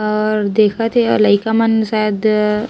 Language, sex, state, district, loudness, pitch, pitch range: Chhattisgarhi, female, Chhattisgarh, Raigarh, -15 LUFS, 215 Hz, 210-220 Hz